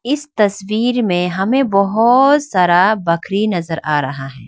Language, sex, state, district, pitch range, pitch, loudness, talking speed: Hindi, female, Arunachal Pradesh, Lower Dibang Valley, 175-235 Hz, 200 Hz, -15 LUFS, 145 wpm